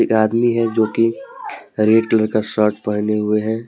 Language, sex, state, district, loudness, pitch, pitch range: Hindi, male, Jharkhand, Deoghar, -17 LUFS, 110 Hz, 105-115 Hz